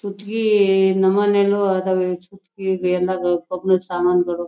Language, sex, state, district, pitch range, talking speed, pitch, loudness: Kannada, female, Karnataka, Shimoga, 180-200 Hz, 120 wpm, 190 Hz, -19 LUFS